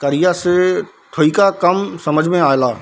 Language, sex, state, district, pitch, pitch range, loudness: Hindi, male, Bihar, Darbhanga, 175 Hz, 150-180 Hz, -15 LUFS